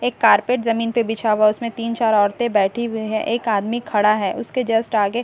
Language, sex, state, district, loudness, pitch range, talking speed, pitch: Hindi, female, Bihar, Katihar, -19 LUFS, 215-235 Hz, 230 wpm, 225 Hz